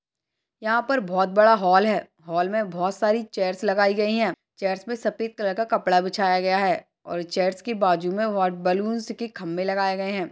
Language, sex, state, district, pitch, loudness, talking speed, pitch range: Hindi, male, Uttar Pradesh, Hamirpur, 195 Hz, -23 LUFS, 200 wpm, 185-220 Hz